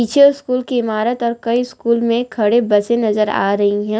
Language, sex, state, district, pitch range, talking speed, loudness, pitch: Hindi, female, Uttar Pradesh, Lalitpur, 215-245 Hz, 210 wpm, -16 LUFS, 235 Hz